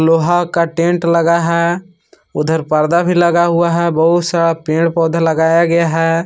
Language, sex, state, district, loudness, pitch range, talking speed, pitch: Hindi, male, Jharkhand, Palamu, -13 LUFS, 165-170 Hz, 180 wpm, 170 Hz